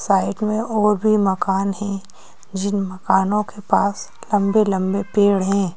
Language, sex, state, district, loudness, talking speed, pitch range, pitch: Hindi, female, Madhya Pradesh, Bhopal, -19 LUFS, 135 wpm, 195-210 Hz, 200 Hz